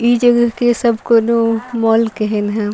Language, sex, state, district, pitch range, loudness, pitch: Sadri, female, Chhattisgarh, Jashpur, 225-240 Hz, -14 LUFS, 230 Hz